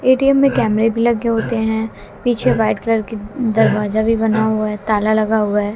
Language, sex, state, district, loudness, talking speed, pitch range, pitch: Hindi, female, Haryana, Jhajjar, -16 LUFS, 210 wpm, 215-230 Hz, 220 Hz